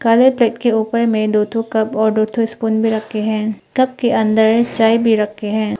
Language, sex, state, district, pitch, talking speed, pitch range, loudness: Hindi, female, Arunachal Pradesh, Papum Pare, 220 Hz, 230 wpm, 215-230 Hz, -16 LUFS